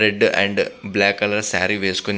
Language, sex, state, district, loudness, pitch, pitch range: Telugu, male, Andhra Pradesh, Visakhapatnam, -19 LUFS, 100 Hz, 100-105 Hz